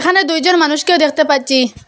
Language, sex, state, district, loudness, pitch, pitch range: Bengali, female, Assam, Hailakandi, -12 LUFS, 310 Hz, 290-355 Hz